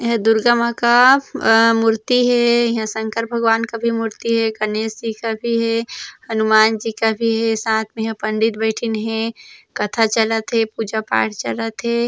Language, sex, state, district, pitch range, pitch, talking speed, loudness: Chhattisgarhi, female, Chhattisgarh, Sarguja, 220-230 Hz, 225 Hz, 175 wpm, -17 LUFS